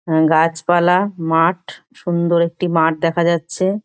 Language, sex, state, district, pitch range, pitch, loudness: Bengali, male, West Bengal, Dakshin Dinajpur, 165-175 Hz, 170 Hz, -16 LUFS